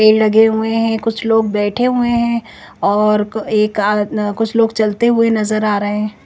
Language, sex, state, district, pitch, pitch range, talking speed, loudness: Hindi, female, Chandigarh, Chandigarh, 220 Hz, 210-225 Hz, 210 wpm, -15 LUFS